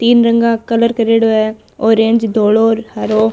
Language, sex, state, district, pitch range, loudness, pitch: Marwari, female, Rajasthan, Nagaur, 220-230 Hz, -13 LUFS, 225 Hz